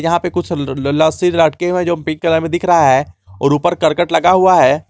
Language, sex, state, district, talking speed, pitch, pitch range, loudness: Hindi, male, Jharkhand, Garhwa, 270 wpm, 165 Hz, 155-175 Hz, -14 LUFS